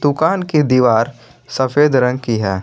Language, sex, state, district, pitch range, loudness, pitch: Hindi, male, Jharkhand, Garhwa, 120-150 Hz, -15 LUFS, 130 Hz